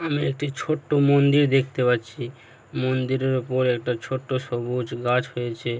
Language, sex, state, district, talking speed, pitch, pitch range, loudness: Bengali, male, West Bengal, Paschim Medinipur, 135 wpm, 130 Hz, 125-140 Hz, -23 LUFS